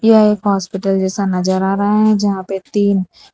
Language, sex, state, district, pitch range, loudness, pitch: Hindi, female, Gujarat, Valsad, 190-205 Hz, -15 LUFS, 195 Hz